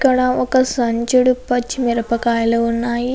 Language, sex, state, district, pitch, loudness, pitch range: Telugu, female, Andhra Pradesh, Anantapur, 245 Hz, -17 LUFS, 235-255 Hz